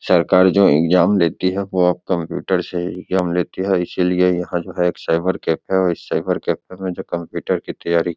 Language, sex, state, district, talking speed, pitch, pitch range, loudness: Hindi, male, Bihar, Begusarai, 215 wpm, 90 Hz, 85-95 Hz, -19 LUFS